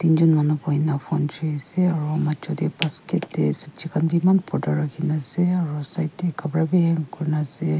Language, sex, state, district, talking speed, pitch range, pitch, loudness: Nagamese, female, Nagaland, Kohima, 200 wpm, 150-165 Hz, 155 Hz, -23 LUFS